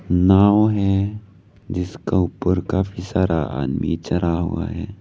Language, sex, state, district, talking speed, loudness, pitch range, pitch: Hindi, male, Arunachal Pradesh, Lower Dibang Valley, 120 wpm, -20 LUFS, 85-100 Hz, 95 Hz